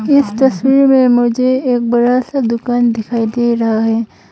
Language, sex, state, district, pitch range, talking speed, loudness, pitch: Hindi, female, Arunachal Pradesh, Longding, 230-255 Hz, 165 wpm, -13 LUFS, 240 Hz